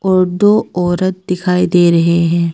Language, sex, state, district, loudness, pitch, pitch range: Hindi, female, Arunachal Pradesh, Papum Pare, -13 LUFS, 180 Hz, 170-185 Hz